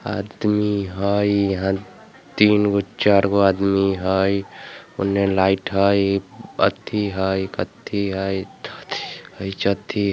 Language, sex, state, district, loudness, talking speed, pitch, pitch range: Hindi, male, Bihar, Vaishali, -20 LUFS, 90 wpm, 100 Hz, 95-100 Hz